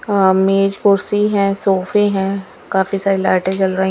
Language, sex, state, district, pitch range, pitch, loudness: Hindi, female, Haryana, Charkhi Dadri, 190-200 Hz, 195 Hz, -16 LUFS